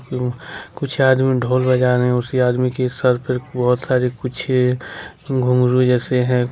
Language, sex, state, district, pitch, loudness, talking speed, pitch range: Hindi, male, Jharkhand, Ranchi, 125 Hz, -18 LUFS, 155 wpm, 125-130 Hz